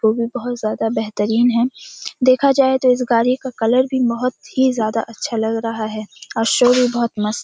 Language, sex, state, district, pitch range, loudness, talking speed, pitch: Hindi, female, Bihar, Kishanganj, 225-250 Hz, -18 LUFS, 220 wpm, 235 Hz